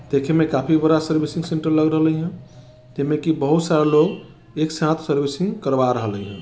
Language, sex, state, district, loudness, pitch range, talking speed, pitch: Bajjika, male, Bihar, Vaishali, -20 LUFS, 140-160 Hz, 170 wpm, 155 Hz